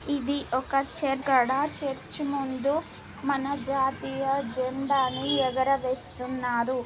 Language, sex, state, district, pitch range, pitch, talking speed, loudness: Telugu, female, Telangana, Karimnagar, 260-280 Hz, 270 Hz, 80 wpm, -27 LUFS